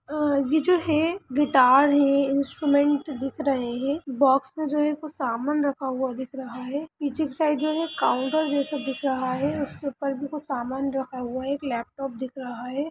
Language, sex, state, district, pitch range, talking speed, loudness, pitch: Hindi, male, Bihar, Darbhanga, 265-295 Hz, 205 wpm, -25 LUFS, 280 Hz